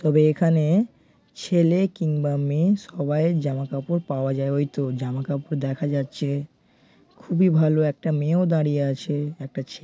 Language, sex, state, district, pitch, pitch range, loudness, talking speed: Bengali, male, West Bengal, Jhargram, 150 Hz, 140-165 Hz, -23 LUFS, 145 wpm